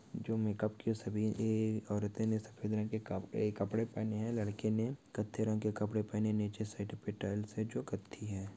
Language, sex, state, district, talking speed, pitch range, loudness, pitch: Hindi, male, West Bengal, Malda, 190 wpm, 105-110 Hz, -38 LUFS, 110 Hz